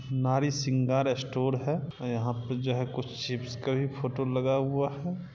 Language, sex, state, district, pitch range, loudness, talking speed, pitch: Hindi, male, Bihar, East Champaran, 125-140 Hz, -30 LUFS, 180 wpm, 130 Hz